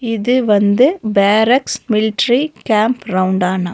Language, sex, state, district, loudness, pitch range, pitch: Tamil, female, Tamil Nadu, Nilgiris, -14 LUFS, 200-245 Hz, 220 Hz